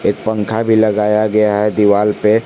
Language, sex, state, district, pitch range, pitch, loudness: Hindi, male, Jharkhand, Garhwa, 105-110 Hz, 105 Hz, -14 LUFS